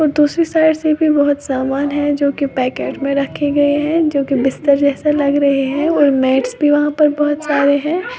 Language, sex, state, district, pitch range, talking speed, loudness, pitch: Hindi, female, Uttar Pradesh, Lalitpur, 280-300 Hz, 210 wpm, -15 LUFS, 290 Hz